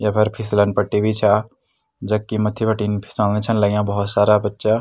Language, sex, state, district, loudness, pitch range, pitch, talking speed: Garhwali, male, Uttarakhand, Tehri Garhwal, -19 LUFS, 105-110 Hz, 105 Hz, 185 wpm